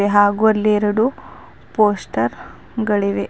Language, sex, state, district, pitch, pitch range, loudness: Kannada, female, Karnataka, Bidar, 210 Hz, 205-220 Hz, -18 LUFS